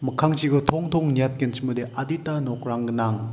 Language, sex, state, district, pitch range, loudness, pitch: Garo, male, Meghalaya, West Garo Hills, 120-150 Hz, -24 LUFS, 130 Hz